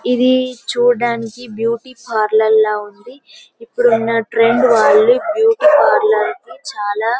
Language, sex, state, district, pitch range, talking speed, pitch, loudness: Telugu, female, Telangana, Karimnagar, 225-265 Hz, 115 wpm, 240 Hz, -14 LUFS